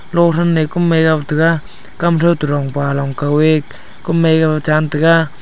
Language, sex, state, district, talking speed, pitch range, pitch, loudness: Wancho, male, Arunachal Pradesh, Longding, 200 wpm, 150-165 Hz, 160 Hz, -14 LUFS